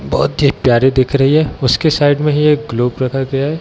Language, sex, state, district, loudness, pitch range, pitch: Hindi, male, Bihar, Darbhanga, -13 LUFS, 130-150 Hz, 140 Hz